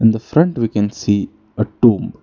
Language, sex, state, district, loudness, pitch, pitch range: English, male, Karnataka, Bangalore, -17 LUFS, 110 Hz, 105-115 Hz